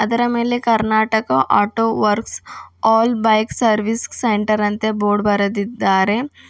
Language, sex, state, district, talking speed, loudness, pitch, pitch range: Kannada, female, Karnataka, Bidar, 110 wpm, -17 LUFS, 220 Hz, 205-225 Hz